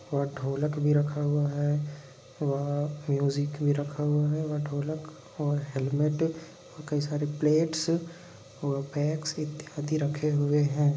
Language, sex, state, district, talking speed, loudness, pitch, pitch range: Hindi, male, Bihar, Lakhisarai, 140 wpm, -29 LUFS, 145 Hz, 145-150 Hz